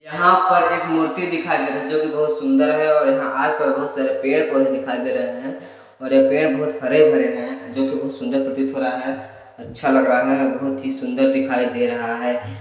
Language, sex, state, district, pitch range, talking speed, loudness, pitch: Hindi, male, Chhattisgarh, Balrampur, 125-175 Hz, 250 wpm, -19 LUFS, 135 Hz